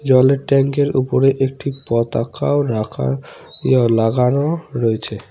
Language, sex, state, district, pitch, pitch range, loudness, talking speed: Bengali, male, West Bengal, Cooch Behar, 130 Hz, 115-140 Hz, -17 LUFS, 100 wpm